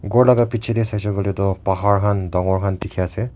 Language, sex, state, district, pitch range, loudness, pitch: Nagamese, male, Nagaland, Kohima, 95-115 Hz, -19 LUFS, 100 Hz